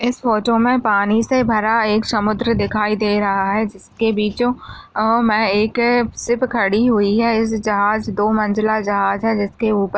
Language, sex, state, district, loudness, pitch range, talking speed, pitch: Hindi, female, Maharashtra, Nagpur, -17 LUFS, 210-230 Hz, 175 wpm, 215 Hz